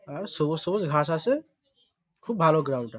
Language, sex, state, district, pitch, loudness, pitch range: Bengali, male, West Bengal, Malda, 165 Hz, -26 LUFS, 150-210 Hz